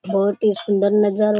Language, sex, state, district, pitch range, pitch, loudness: Rajasthani, male, Rajasthan, Churu, 200-210 Hz, 205 Hz, -18 LUFS